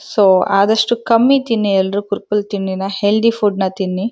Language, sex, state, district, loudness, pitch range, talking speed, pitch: Kannada, female, Karnataka, Dharwad, -15 LUFS, 195-225 Hz, 145 wpm, 205 Hz